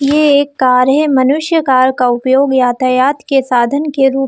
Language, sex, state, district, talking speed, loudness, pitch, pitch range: Hindi, female, Chhattisgarh, Bilaspur, 180 wpm, -11 LUFS, 270 Hz, 255-285 Hz